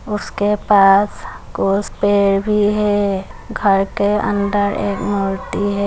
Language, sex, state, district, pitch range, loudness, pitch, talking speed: Hindi, female, Bihar, Madhepura, 200-205 Hz, -17 LUFS, 205 Hz, 125 wpm